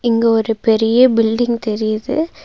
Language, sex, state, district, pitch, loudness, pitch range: Tamil, female, Tamil Nadu, Nilgiris, 230 Hz, -15 LUFS, 220-240 Hz